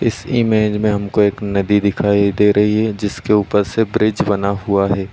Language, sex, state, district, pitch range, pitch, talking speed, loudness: Hindi, male, Uttar Pradesh, Ghazipur, 100-110 Hz, 105 Hz, 200 wpm, -16 LUFS